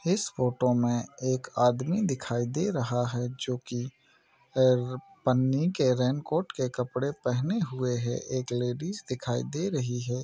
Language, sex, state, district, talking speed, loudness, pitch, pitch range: Hindi, male, Maharashtra, Nagpur, 150 wpm, -29 LUFS, 130 Hz, 125-145 Hz